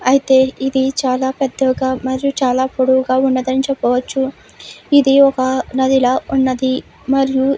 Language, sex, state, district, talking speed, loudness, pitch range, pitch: Telugu, female, Andhra Pradesh, Guntur, 120 wpm, -15 LUFS, 260-270 Hz, 265 Hz